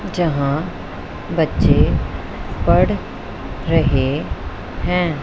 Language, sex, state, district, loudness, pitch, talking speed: Hindi, female, Punjab, Pathankot, -19 LUFS, 140 Hz, 55 wpm